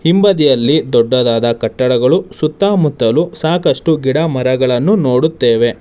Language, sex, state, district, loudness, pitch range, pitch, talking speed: Kannada, male, Karnataka, Bangalore, -13 LUFS, 125-165 Hz, 135 Hz, 80 wpm